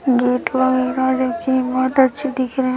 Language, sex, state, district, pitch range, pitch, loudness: Hindi, female, Chhattisgarh, Raipur, 255-260 Hz, 260 Hz, -18 LUFS